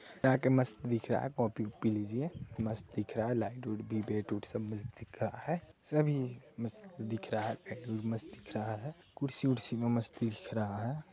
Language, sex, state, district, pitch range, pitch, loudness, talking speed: Hindi, male, Chhattisgarh, Sarguja, 110-130 Hz, 115 Hz, -36 LUFS, 210 wpm